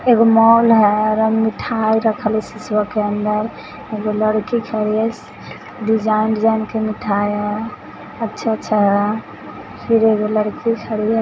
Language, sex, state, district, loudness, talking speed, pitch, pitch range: Hindi, female, Bihar, Samastipur, -17 LUFS, 145 wpm, 215 Hz, 215-225 Hz